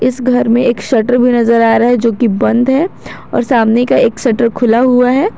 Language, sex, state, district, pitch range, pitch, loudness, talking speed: Hindi, female, Jharkhand, Garhwa, 230-250 Hz, 240 Hz, -11 LUFS, 245 wpm